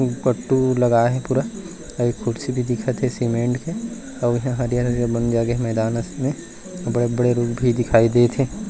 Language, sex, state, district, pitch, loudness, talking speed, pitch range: Chhattisgarhi, male, Chhattisgarh, Rajnandgaon, 120 Hz, -21 LUFS, 165 wpm, 120-130 Hz